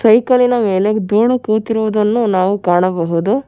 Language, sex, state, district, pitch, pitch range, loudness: Kannada, female, Karnataka, Bangalore, 215 Hz, 190-230 Hz, -14 LUFS